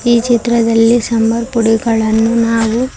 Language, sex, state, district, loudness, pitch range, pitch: Kannada, female, Karnataka, Koppal, -12 LUFS, 225-235 Hz, 230 Hz